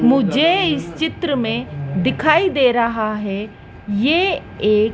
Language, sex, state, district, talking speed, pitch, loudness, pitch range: Hindi, female, Madhya Pradesh, Dhar, 120 wpm, 240 Hz, -18 LUFS, 210-310 Hz